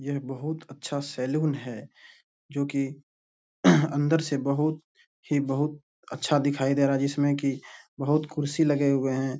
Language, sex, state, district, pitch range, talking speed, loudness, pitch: Hindi, male, Bihar, Bhagalpur, 135-150 Hz, 155 wpm, -27 LUFS, 140 Hz